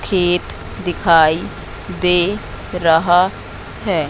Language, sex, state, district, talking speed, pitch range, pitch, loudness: Hindi, female, Madhya Pradesh, Katni, 75 wpm, 170-180 Hz, 175 Hz, -16 LUFS